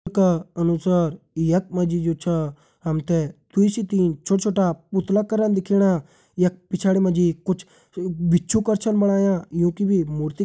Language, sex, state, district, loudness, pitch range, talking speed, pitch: Hindi, male, Uttarakhand, Uttarkashi, -22 LUFS, 170-195 Hz, 170 wpm, 180 Hz